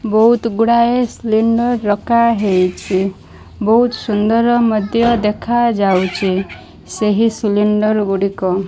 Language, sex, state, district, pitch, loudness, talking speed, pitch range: Odia, female, Odisha, Malkangiri, 215 Hz, -15 LUFS, 90 wpm, 200-235 Hz